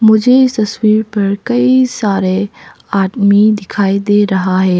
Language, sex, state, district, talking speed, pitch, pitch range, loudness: Hindi, female, Arunachal Pradesh, Papum Pare, 135 wpm, 205 Hz, 195-220 Hz, -12 LUFS